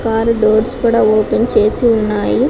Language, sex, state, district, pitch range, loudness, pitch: Telugu, female, Telangana, Karimnagar, 215-235 Hz, -13 LUFS, 225 Hz